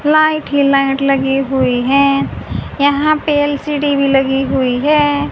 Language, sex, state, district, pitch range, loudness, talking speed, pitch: Hindi, female, Haryana, Rohtak, 270-290 Hz, -14 LUFS, 145 wpm, 280 Hz